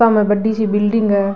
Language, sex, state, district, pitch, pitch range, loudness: Rajasthani, female, Rajasthan, Nagaur, 210 Hz, 205-220 Hz, -16 LUFS